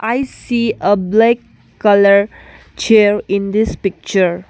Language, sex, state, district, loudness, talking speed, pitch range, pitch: English, female, Arunachal Pradesh, Longding, -14 LUFS, 120 wpm, 200-225 Hz, 205 Hz